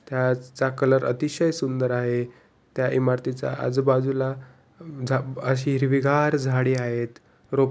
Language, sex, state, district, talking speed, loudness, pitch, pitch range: Marathi, male, Maharashtra, Pune, 115 wpm, -24 LUFS, 130 Hz, 125-135 Hz